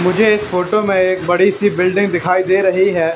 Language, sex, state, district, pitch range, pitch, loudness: Hindi, male, Haryana, Charkhi Dadri, 180-200 Hz, 185 Hz, -14 LUFS